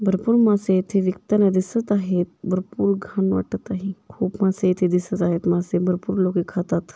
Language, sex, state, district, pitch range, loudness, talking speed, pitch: Marathi, female, Maharashtra, Chandrapur, 180-200 Hz, -21 LUFS, 170 wpm, 185 Hz